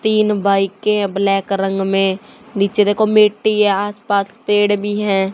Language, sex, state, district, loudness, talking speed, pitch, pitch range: Hindi, female, Haryana, Charkhi Dadri, -16 LUFS, 155 wpm, 205 Hz, 195-210 Hz